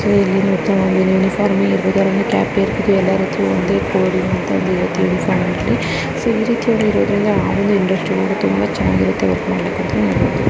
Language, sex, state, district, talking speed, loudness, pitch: Kannada, female, Karnataka, Dharwad, 70 wpm, -16 LUFS, 190 Hz